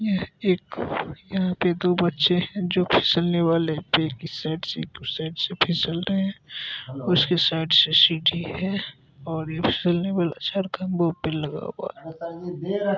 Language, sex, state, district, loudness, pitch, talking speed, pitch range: Hindi, male, Bihar, Gopalganj, -23 LUFS, 170 Hz, 125 wpm, 160-185 Hz